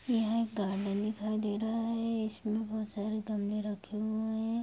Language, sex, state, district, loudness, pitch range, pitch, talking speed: Hindi, female, Bihar, Darbhanga, -34 LUFS, 210-220 Hz, 215 Hz, 195 wpm